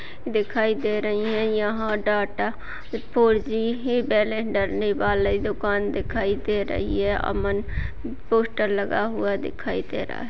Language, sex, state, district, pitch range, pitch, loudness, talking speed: Hindi, female, Chhattisgarh, Bastar, 200-220 Hz, 210 Hz, -24 LUFS, 145 wpm